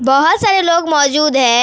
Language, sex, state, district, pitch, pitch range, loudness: Hindi, female, West Bengal, Alipurduar, 295 Hz, 270-340 Hz, -12 LUFS